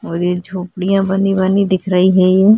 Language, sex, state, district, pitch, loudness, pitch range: Hindi, female, Uttarakhand, Tehri Garhwal, 190 Hz, -14 LUFS, 185-195 Hz